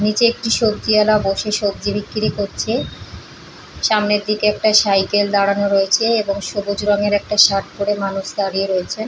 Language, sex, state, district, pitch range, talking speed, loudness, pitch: Bengali, female, West Bengal, Paschim Medinipur, 200-215 Hz, 145 wpm, -17 LUFS, 205 Hz